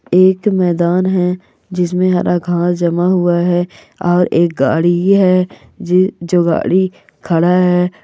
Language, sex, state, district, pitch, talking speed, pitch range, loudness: Hindi, female, Andhra Pradesh, Chittoor, 180 Hz, 135 wpm, 175-185 Hz, -14 LUFS